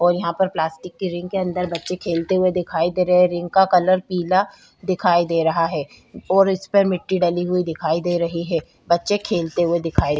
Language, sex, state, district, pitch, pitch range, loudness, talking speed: Hindi, female, Bihar, Vaishali, 175 Hz, 170-185 Hz, -20 LUFS, 220 wpm